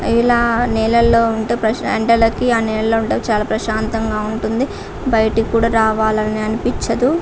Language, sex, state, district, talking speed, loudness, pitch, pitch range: Telugu, female, Andhra Pradesh, Guntur, 115 wpm, -16 LUFS, 225 Hz, 220-230 Hz